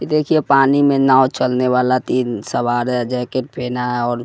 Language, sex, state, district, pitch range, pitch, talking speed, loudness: Hindi, male, Bihar, West Champaran, 125-135 Hz, 125 Hz, 185 wpm, -16 LUFS